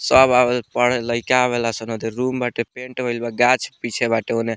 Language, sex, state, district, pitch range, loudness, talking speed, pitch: Bhojpuri, male, Bihar, Muzaffarpur, 115-125 Hz, -19 LUFS, 210 wpm, 120 Hz